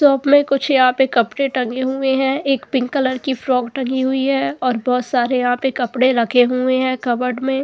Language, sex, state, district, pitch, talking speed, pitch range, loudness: Hindi, female, Goa, North and South Goa, 260 Hz, 220 wpm, 250-270 Hz, -17 LUFS